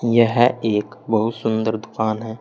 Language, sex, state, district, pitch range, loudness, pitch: Hindi, male, Uttar Pradesh, Saharanpur, 110-115 Hz, -20 LUFS, 110 Hz